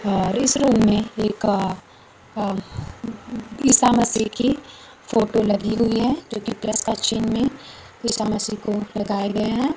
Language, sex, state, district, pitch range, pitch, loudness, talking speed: Hindi, female, Bihar, Kaimur, 210-245 Hz, 225 Hz, -21 LUFS, 160 wpm